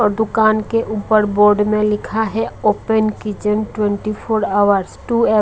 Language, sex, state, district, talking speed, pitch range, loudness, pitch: Hindi, female, Odisha, Malkangiri, 175 wpm, 210-220 Hz, -17 LUFS, 215 Hz